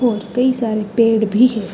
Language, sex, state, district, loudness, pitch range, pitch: Hindi, female, Uttar Pradesh, Hamirpur, -16 LUFS, 215-245 Hz, 225 Hz